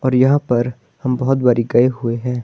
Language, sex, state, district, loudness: Hindi, male, Himachal Pradesh, Shimla, -17 LUFS